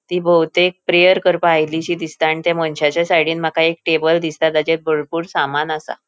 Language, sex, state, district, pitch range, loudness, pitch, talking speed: Konkani, female, Goa, North and South Goa, 160-175 Hz, -16 LUFS, 165 Hz, 175 wpm